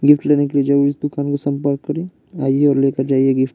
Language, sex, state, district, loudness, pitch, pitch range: Hindi, male, Bihar, West Champaran, -17 LUFS, 140 Hz, 135-145 Hz